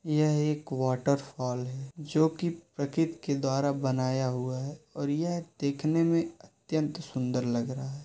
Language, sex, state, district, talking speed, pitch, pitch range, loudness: Hindi, male, Uttar Pradesh, Muzaffarnagar, 150 wpm, 140 Hz, 130-160 Hz, -30 LUFS